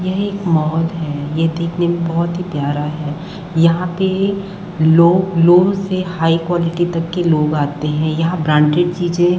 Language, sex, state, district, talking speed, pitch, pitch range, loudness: Hindi, female, Chhattisgarh, Bastar, 170 wpm, 170 Hz, 160-180 Hz, -16 LUFS